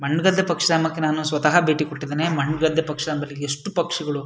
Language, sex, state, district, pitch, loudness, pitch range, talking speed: Kannada, male, Karnataka, Shimoga, 155 Hz, -21 LUFS, 150-165 Hz, 195 wpm